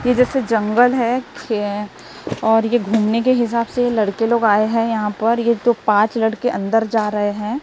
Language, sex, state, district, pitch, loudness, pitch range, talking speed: Hindi, female, Maharashtra, Gondia, 225 Hz, -17 LUFS, 215-240 Hz, 195 wpm